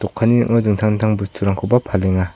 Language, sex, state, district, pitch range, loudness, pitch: Garo, male, Meghalaya, South Garo Hills, 100-115 Hz, -17 LUFS, 105 Hz